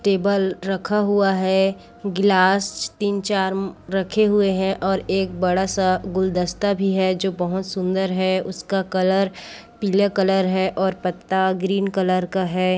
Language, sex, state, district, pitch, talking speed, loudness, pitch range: Chhattisgarhi, female, Chhattisgarh, Korba, 190 Hz, 145 wpm, -21 LUFS, 185-195 Hz